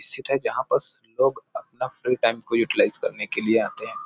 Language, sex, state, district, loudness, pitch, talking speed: Hindi, male, Chhattisgarh, Bilaspur, -24 LUFS, 125 Hz, 220 wpm